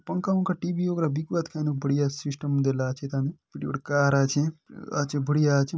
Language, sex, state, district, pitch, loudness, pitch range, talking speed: Halbi, male, Chhattisgarh, Bastar, 145 Hz, -27 LUFS, 140-165 Hz, 60 wpm